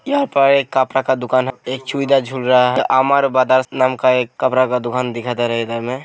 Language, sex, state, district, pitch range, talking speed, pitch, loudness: Hindi, male, Uttar Pradesh, Hamirpur, 125-135 Hz, 250 wpm, 130 Hz, -16 LUFS